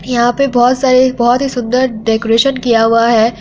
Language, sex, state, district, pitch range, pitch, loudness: Hindi, female, Bihar, Araria, 230-255 Hz, 245 Hz, -12 LUFS